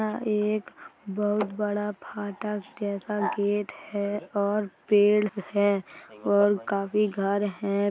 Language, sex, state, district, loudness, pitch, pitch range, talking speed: Hindi, female, Uttar Pradesh, Hamirpur, -27 LUFS, 205 Hz, 200-210 Hz, 115 wpm